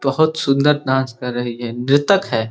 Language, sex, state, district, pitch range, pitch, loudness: Hindi, male, Uttar Pradesh, Ghazipur, 120-150 Hz, 135 Hz, -18 LUFS